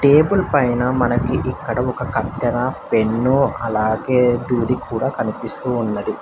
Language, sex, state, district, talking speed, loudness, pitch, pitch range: Telugu, male, Telangana, Hyderabad, 115 wpm, -19 LUFS, 125 Hz, 115-130 Hz